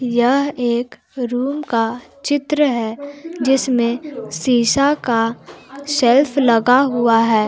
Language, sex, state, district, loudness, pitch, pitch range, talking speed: Hindi, female, Jharkhand, Palamu, -17 LUFS, 250 Hz, 235-280 Hz, 105 wpm